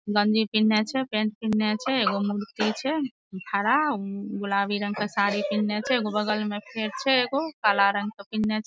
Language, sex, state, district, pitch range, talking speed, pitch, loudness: Maithili, female, Bihar, Madhepura, 205-225 Hz, 195 wpm, 215 Hz, -25 LUFS